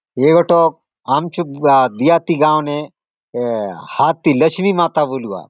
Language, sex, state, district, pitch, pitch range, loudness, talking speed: Halbi, male, Chhattisgarh, Bastar, 155 Hz, 135-170 Hz, -15 LUFS, 120 wpm